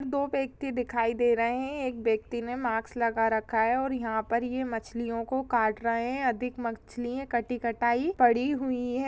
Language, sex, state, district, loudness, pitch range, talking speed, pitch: Hindi, female, Chhattisgarh, Kabirdham, -29 LUFS, 230-255 Hz, 180 wpm, 240 Hz